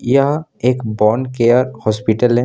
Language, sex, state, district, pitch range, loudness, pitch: Hindi, male, Jharkhand, Deoghar, 110-130 Hz, -16 LUFS, 120 Hz